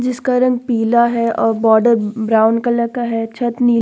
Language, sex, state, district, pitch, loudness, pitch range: Hindi, female, Uttar Pradesh, Muzaffarnagar, 235 Hz, -15 LUFS, 225-240 Hz